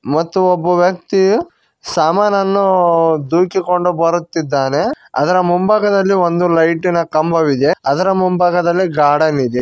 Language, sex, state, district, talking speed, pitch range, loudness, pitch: Kannada, male, Karnataka, Koppal, 95 wpm, 160-185 Hz, -14 LUFS, 175 Hz